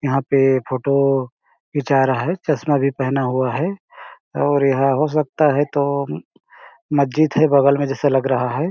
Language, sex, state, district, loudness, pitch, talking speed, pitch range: Hindi, male, Chhattisgarh, Balrampur, -18 LUFS, 140 Hz, 180 wpm, 135-150 Hz